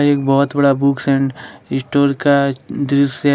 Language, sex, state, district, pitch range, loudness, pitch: Hindi, male, Jharkhand, Ranchi, 135-140 Hz, -16 LUFS, 140 Hz